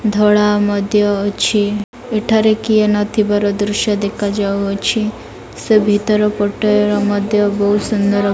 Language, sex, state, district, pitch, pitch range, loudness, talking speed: Odia, female, Odisha, Malkangiri, 210 Hz, 205-215 Hz, -15 LUFS, 110 wpm